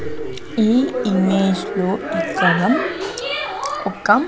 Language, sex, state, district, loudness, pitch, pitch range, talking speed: Telugu, female, Andhra Pradesh, Sri Satya Sai, -19 LUFS, 210 Hz, 185-260 Hz, 70 wpm